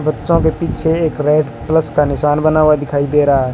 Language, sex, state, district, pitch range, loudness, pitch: Hindi, male, Rajasthan, Bikaner, 145-160 Hz, -14 LUFS, 150 Hz